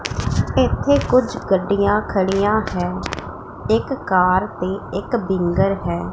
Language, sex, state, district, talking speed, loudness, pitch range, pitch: Punjabi, female, Punjab, Pathankot, 110 wpm, -19 LUFS, 175-210 Hz, 195 Hz